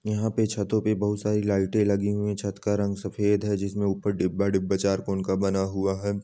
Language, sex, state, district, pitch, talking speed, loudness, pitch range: Angika, male, Bihar, Samastipur, 100 Hz, 240 wpm, -26 LUFS, 95-105 Hz